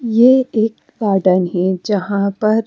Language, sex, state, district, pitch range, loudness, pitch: Hindi, female, Punjab, Fazilka, 190-230 Hz, -15 LUFS, 215 Hz